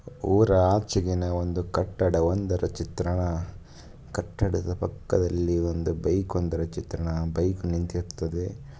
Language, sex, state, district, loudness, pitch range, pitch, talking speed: Kannada, male, Karnataka, Shimoga, -27 LUFS, 85-95 Hz, 90 Hz, 90 wpm